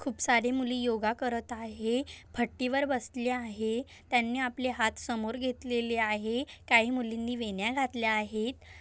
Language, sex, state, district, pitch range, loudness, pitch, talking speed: Marathi, female, Maharashtra, Aurangabad, 225-255 Hz, -31 LUFS, 240 Hz, 135 wpm